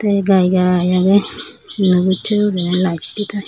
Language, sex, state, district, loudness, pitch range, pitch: Chakma, female, Tripura, Unakoti, -15 LUFS, 180-205 Hz, 190 Hz